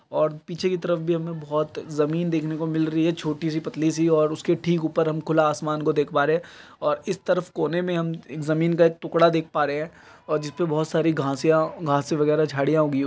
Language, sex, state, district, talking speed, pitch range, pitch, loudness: Hindi, male, Uttar Pradesh, Budaun, 245 wpm, 155-165 Hz, 160 Hz, -24 LUFS